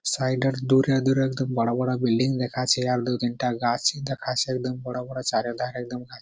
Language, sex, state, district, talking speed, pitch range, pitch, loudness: Bengali, male, West Bengal, Purulia, 200 wpm, 125-130 Hz, 125 Hz, -25 LUFS